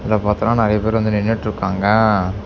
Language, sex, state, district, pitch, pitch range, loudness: Tamil, male, Tamil Nadu, Namakkal, 105 Hz, 105-110 Hz, -17 LUFS